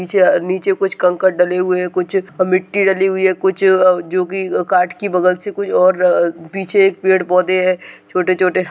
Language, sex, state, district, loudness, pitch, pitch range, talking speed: Hindi, male, Uttar Pradesh, Budaun, -15 LUFS, 185 Hz, 180-190 Hz, 220 wpm